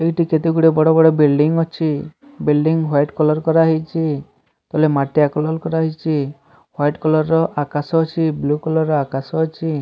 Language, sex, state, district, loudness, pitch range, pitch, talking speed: Odia, male, Odisha, Sambalpur, -17 LUFS, 150-160 Hz, 155 Hz, 135 wpm